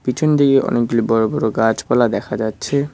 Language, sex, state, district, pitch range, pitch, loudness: Bengali, male, West Bengal, Cooch Behar, 115-135 Hz, 120 Hz, -17 LUFS